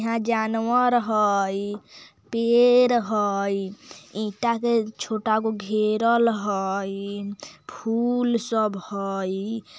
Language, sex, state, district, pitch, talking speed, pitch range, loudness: Bajjika, female, Bihar, Vaishali, 215 Hz, 85 wpm, 200-230 Hz, -23 LUFS